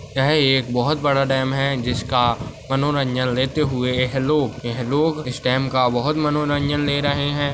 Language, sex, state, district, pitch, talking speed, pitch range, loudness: Hindi, male, Maharashtra, Nagpur, 135 Hz, 175 wpm, 125-145 Hz, -20 LUFS